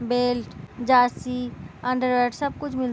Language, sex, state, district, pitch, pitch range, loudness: Hindi, female, Bihar, East Champaran, 250 Hz, 245-255 Hz, -24 LUFS